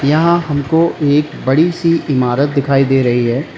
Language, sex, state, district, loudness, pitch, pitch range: Hindi, male, Uttar Pradesh, Lalitpur, -14 LUFS, 145 Hz, 135-160 Hz